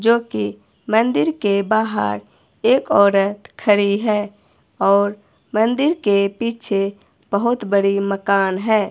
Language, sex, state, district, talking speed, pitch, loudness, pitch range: Hindi, female, Himachal Pradesh, Shimla, 110 wpm, 200 Hz, -18 LUFS, 195-220 Hz